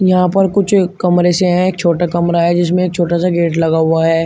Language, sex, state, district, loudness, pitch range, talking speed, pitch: Hindi, male, Uttar Pradesh, Shamli, -13 LUFS, 170-185 Hz, 240 wpm, 175 Hz